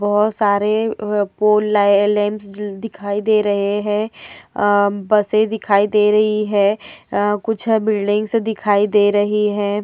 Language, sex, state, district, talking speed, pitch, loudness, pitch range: Hindi, female, Uttar Pradesh, Hamirpur, 135 wpm, 210 Hz, -17 LUFS, 205-215 Hz